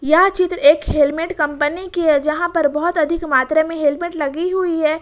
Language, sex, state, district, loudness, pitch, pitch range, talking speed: Hindi, female, Jharkhand, Ranchi, -17 LUFS, 315 Hz, 295-345 Hz, 205 wpm